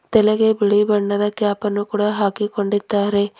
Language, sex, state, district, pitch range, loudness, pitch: Kannada, female, Karnataka, Bidar, 205-210 Hz, -18 LUFS, 205 Hz